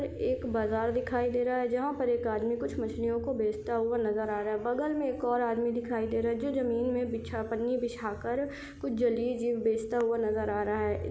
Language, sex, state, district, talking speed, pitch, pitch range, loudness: Hindi, female, Chhattisgarh, Sarguja, 230 wpm, 235 Hz, 225-245 Hz, -31 LUFS